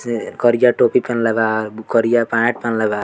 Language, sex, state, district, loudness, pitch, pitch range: Bhojpuri, male, Bihar, Muzaffarpur, -17 LUFS, 115 Hz, 110-120 Hz